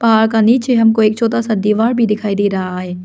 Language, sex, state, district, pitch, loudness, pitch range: Hindi, female, Arunachal Pradesh, Lower Dibang Valley, 220 Hz, -14 LUFS, 205-230 Hz